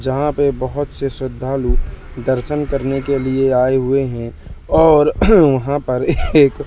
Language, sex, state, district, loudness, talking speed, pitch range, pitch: Hindi, male, Madhya Pradesh, Katni, -16 LUFS, 145 wpm, 130-145 Hz, 135 Hz